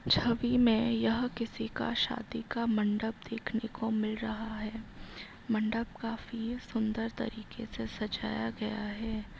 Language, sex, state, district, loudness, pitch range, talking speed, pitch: Hindi, female, Bihar, Begusarai, -33 LUFS, 215-230 Hz, 145 wpm, 225 Hz